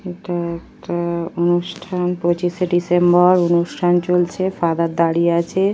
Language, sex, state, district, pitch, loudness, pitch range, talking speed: Bengali, female, West Bengal, Paschim Medinipur, 175 Hz, -18 LUFS, 170-180 Hz, 125 wpm